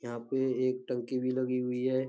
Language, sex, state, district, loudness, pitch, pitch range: Hindi, male, Uttar Pradesh, Budaun, -32 LUFS, 130 Hz, 125-130 Hz